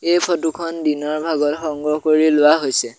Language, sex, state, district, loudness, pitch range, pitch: Assamese, male, Assam, Sonitpur, -18 LUFS, 150-165 Hz, 155 Hz